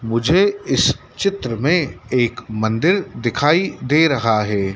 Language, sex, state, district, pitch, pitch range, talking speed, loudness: Hindi, male, Madhya Pradesh, Dhar, 125 Hz, 110-165 Hz, 125 wpm, -18 LUFS